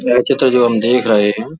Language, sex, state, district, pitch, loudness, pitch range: Hindi, male, Uttar Pradesh, Jalaun, 125 Hz, -13 LUFS, 110-125 Hz